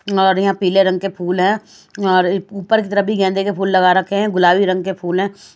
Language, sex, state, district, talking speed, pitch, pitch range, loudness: Hindi, female, Haryana, Rohtak, 270 wpm, 195 Hz, 185-200 Hz, -16 LUFS